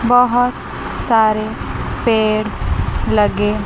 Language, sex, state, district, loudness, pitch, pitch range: Hindi, female, Chandigarh, Chandigarh, -17 LUFS, 215 Hz, 205-230 Hz